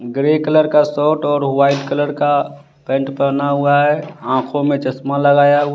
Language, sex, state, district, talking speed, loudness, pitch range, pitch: Hindi, male, Bihar, West Champaran, 175 wpm, -15 LUFS, 140-145 Hz, 145 Hz